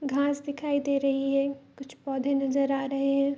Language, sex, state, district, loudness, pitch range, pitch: Hindi, female, Bihar, Araria, -27 LUFS, 275-280 Hz, 275 Hz